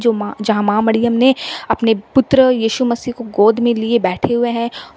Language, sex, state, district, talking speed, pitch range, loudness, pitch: Hindi, female, Delhi, New Delhi, 220 wpm, 220-240 Hz, -15 LUFS, 235 Hz